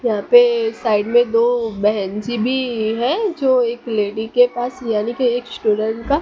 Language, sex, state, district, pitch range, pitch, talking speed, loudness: Hindi, male, Gujarat, Gandhinagar, 220-245 Hz, 235 Hz, 185 wpm, -18 LUFS